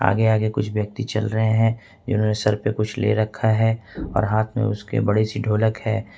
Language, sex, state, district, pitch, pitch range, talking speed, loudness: Hindi, male, Jharkhand, Ranchi, 110 Hz, 105-110 Hz, 215 wpm, -22 LUFS